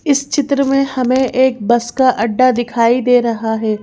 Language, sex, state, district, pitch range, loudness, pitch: Hindi, female, Madhya Pradesh, Bhopal, 235-265 Hz, -14 LUFS, 250 Hz